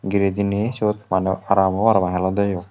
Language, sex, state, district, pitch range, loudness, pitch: Chakma, male, Tripura, Unakoti, 95-100 Hz, -20 LUFS, 100 Hz